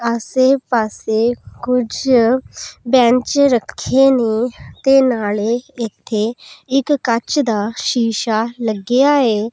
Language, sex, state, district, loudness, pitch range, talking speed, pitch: Punjabi, female, Punjab, Pathankot, -16 LUFS, 225-260 Hz, 95 wpm, 240 Hz